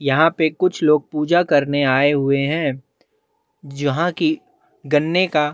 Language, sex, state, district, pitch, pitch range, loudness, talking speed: Hindi, male, Chhattisgarh, Bastar, 150 Hz, 145-180 Hz, -18 LUFS, 140 wpm